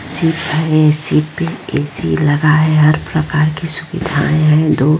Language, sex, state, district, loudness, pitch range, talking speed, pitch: Hindi, female, Bihar, Vaishali, -14 LUFS, 150-160 Hz, 170 wpm, 155 Hz